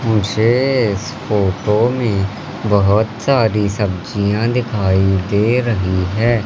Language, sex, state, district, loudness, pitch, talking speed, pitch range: Hindi, male, Madhya Pradesh, Katni, -16 LUFS, 105 Hz, 100 wpm, 100-115 Hz